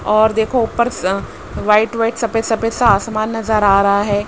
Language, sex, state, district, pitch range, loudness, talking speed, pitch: Hindi, female, Haryana, Rohtak, 205-225 Hz, -16 LUFS, 195 wpm, 220 Hz